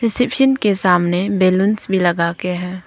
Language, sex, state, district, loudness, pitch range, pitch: Hindi, female, Arunachal Pradesh, Papum Pare, -16 LUFS, 180-215 Hz, 185 Hz